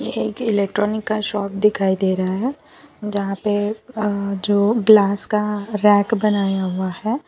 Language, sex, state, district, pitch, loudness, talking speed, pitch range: Hindi, female, Gujarat, Valsad, 210 Hz, -19 LUFS, 150 wpm, 200-215 Hz